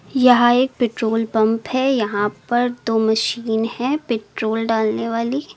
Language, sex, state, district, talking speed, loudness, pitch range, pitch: Hindi, female, Uttar Pradesh, Lucknow, 140 wpm, -19 LUFS, 220-245 Hz, 230 Hz